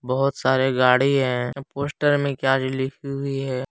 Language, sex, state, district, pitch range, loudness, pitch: Hindi, male, Jharkhand, Palamu, 130-140 Hz, -22 LUFS, 135 Hz